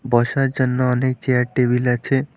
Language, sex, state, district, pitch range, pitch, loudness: Bengali, male, West Bengal, Alipurduar, 125-130 Hz, 130 Hz, -19 LUFS